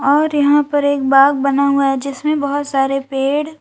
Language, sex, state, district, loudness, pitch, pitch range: Hindi, female, Uttar Pradesh, Lalitpur, -15 LUFS, 280 Hz, 275-290 Hz